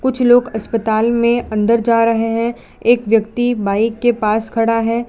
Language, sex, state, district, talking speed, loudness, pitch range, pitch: Hindi, female, Gujarat, Valsad, 175 wpm, -15 LUFS, 225-240 Hz, 230 Hz